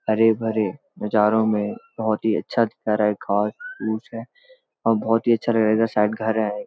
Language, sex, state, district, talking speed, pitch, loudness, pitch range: Hindi, male, Uttarakhand, Uttarkashi, 170 wpm, 110 Hz, -22 LUFS, 105-115 Hz